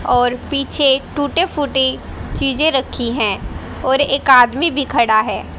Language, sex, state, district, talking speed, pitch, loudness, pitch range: Hindi, female, Haryana, Jhajjar, 140 wpm, 265 Hz, -16 LUFS, 245-285 Hz